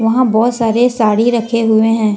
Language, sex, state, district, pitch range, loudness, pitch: Hindi, female, Jharkhand, Deoghar, 220-235 Hz, -13 LUFS, 225 Hz